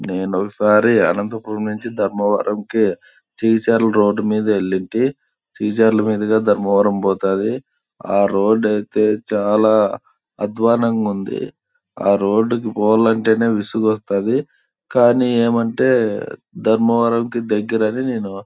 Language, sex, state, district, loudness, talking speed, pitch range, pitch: Telugu, male, Andhra Pradesh, Anantapur, -17 LUFS, 105 wpm, 105-115 Hz, 110 Hz